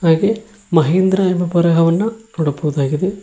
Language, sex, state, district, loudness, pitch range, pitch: Kannada, male, Karnataka, Koppal, -16 LUFS, 160-195 Hz, 175 Hz